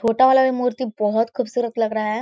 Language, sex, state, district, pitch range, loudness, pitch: Hindi, female, Chhattisgarh, Korba, 220-255 Hz, -20 LUFS, 235 Hz